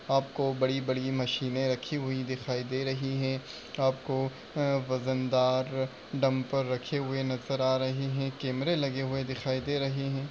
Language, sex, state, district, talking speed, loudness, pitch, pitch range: Hindi, male, Maharashtra, Solapur, 145 wpm, -31 LUFS, 130 Hz, 130-135 Hz